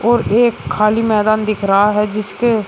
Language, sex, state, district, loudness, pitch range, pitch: Hindi, male, Uttar Pradesh, Shamli, -15 LUFS, 210-225 Hz, 215 Hz